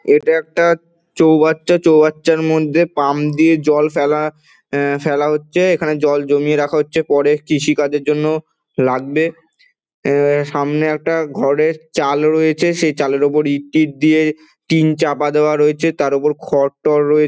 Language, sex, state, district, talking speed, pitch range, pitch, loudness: Bengali, male, West Bengal, Dakshin Dinajpur, 140 wpm, 145-160 Hz, 150 Hz, -15 LUFS